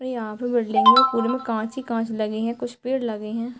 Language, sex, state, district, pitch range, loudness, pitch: Hindi, female, Bihar, Sitamarhi, 225-255 Hz, -22 LUFS, 235 Hz